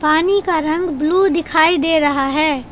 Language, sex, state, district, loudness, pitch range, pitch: Hindi, female, Jharkhand, Palamu, -15 LUFS, 305-335 Hz, 315 Hz